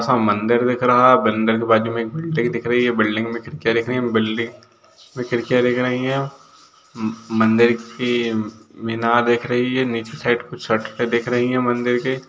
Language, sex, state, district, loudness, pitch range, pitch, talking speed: Hindi, male, Bihar, Gopalganj, -19 LUFS, 115-125 Hz, 120 Hz, 155 wpm